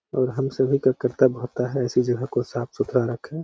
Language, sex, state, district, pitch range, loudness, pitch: Hindi, female, Bihar, Gaya, 125-135 Hz, -23 LUFS, 130 Hz